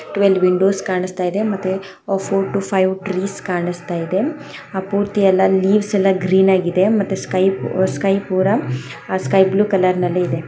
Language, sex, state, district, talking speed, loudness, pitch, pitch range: Kannada, female, Karnataka, Chamarajanagar, 160 wpm, -17 LUFS, 190 Hz, 185-195 Hz